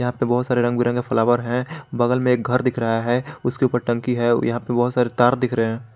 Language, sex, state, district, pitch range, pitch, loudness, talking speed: Hindi, male, Jharkhand, Garhwa, 120-125 Hz, 120 Hz, -20 LUFS, 270 wpm